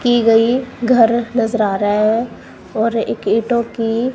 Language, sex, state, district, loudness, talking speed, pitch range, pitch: Hindi, female, Punjab, Kapurthala, -16 LUFS, 160 wpm, 225-240 Hz, 230 Hz